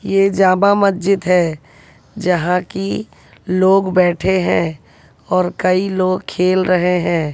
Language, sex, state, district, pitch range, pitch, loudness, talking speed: Hindi, female, Delhi, New Delhi, 170-190 Hz, 180 Hz, -16 LUFS, 120 wpm